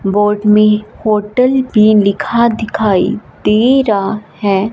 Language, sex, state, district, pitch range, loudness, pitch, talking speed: Hindi, female, Punjab, Fazilka, 205-220 Hz, -12 LUFS, 210 Hz, 115 wpm